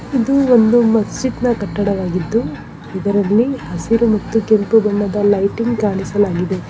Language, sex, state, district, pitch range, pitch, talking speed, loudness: Kannada, female, Karnataka, Bangalore, 195-230 Hz, 210 Hz, 100 wpm, -16 LUFS